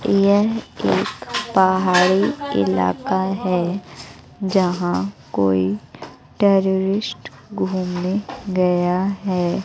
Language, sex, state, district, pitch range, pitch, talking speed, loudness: Hindi, female, Bihar, West Champaran, 175-195 Hz, 185 Hz, 75 wpm, -20 LUFS